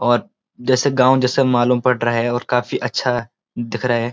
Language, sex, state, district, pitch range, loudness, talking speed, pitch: Hindi, male, Uttarakhand, Uttarkashi, 120-130 Hz, -18 LUFS, 205 wpm, 125 Hz